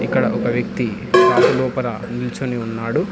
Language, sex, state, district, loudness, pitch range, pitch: Telugu, male, Telangana, Hyderabad, -18 LUFS, 120-135 Hz, 125 Hz